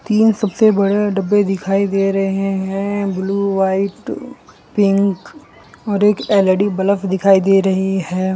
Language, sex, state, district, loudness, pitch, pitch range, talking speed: Hindi, male, Gujarat, Valsad, -16 LUFS, 195 Hz, 195-205 Hz, 135 wpm